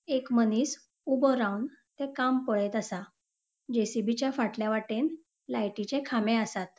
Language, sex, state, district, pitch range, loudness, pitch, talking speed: Konkani, female, Goa, North and South Goa, 220-270 Hz, -30 LUFS, 235 Hz, 135 wpm